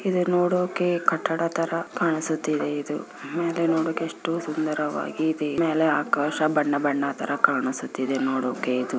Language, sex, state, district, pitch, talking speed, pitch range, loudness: Kannada, female, Karnataka, Bellary, 160 Hz, 135 wpm, 145-165 Hz, -25 LUFS